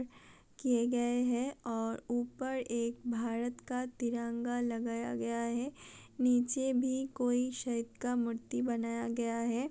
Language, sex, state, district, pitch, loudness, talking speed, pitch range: Hindi, female, Uttar Pradesh, Budaun, 240 Hz, -35 LUFS, 130 wpm, 235-250 Hz